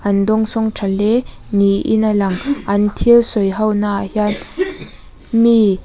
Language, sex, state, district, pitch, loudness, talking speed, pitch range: Mizo, female, Mizoram, Aizawl, 210 Hz, -16 LUFS, 145 wpm, 200-230 Hz